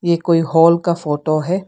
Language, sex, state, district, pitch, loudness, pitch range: Hindi, female, Arunachal Pradesh, Lower Dibang Valley, 170 Hz, -15 LUFS, 155-170 Hz